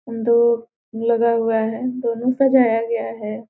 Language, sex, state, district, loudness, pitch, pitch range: Hindi, female, Bihar, Gopalganj, -19 LUFS, 230 Hz, 225-235 Hz